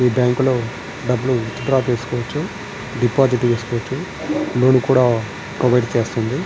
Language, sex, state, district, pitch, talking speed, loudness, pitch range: Telugu, male, Andhra Pradesh, Srikakulam, 125 Hz, 110 wpm, -19 LUFS, 120-130 Hz